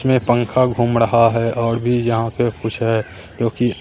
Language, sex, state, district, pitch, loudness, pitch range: Hindi, male, Bihar, Katihar, 115 Hz, -17 LUFS, 115-120 Hz